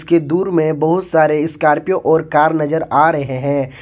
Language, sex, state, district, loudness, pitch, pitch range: Hindi, male, Jharkhand, Ranchi, -15 LUFS, 155 Hz, 150-165 Hz